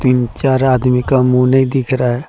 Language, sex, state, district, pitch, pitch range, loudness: Hindi, male, Jharkhand, Deoghar, 130 Hz, 125-130 Hz, -13 LUFS